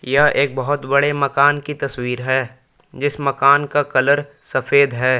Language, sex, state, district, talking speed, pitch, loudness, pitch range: Hindi, male, Jharkhand, Palamu, 160 wpm, 140 Hz, -17 LUFS, 130-145 Hz